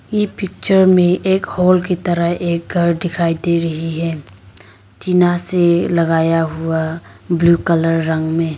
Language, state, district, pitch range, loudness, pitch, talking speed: Hindi, Arunachal Pradesh, Lower Dibang Valley, 165-180 Hz, -16 LUFS, 170 Hz, 145 wpm